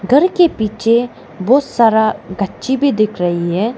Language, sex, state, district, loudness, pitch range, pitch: Hindi, female, Arunachal Pradesh, Lower Dibang Valley, -15 LUFS, 205-265 Hz, 225 Hz